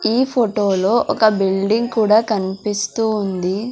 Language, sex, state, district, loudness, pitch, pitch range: Telugu, female, Andhra Pradesh, Sri Satya Sai, -17 LUFS, 210 Hz, 195-225 Hz